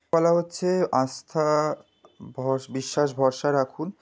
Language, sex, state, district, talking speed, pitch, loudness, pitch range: Bengali, male, West Bengal, Kolkata, 105 wpm, 145 Hz, -25 LUFS, 130-165 Hz